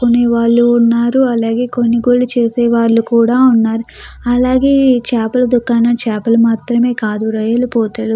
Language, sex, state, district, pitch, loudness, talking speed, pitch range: Telugu, female, Andhra Pradesh, Krishna, 235 Hz, -12 LUFS, 125 wpm, 230-245 Hz